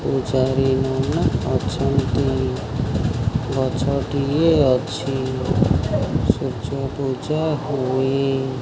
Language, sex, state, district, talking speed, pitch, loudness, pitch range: Odia, male, Odisha, Khordha, 55 wpm, 130 Hz, -21 LUFS, 130-135 Hz